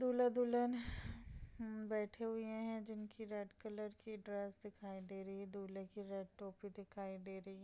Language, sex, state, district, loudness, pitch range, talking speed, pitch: Hindi, female, Bihar, Darbhanga, -45 LUFS, 195-220 Hz, 165 wpm, 210 Hz